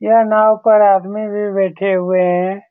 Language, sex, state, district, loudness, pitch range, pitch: Hindi, male, Bihar, Saran, -14 LUFS, 190-215 Hz, 200 Hz